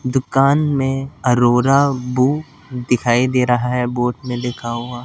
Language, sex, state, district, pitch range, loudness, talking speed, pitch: Hindi, male, Delhi, New Delhi, 120-135 Hz, -17 LUFS, 140 wpm, 125 Hz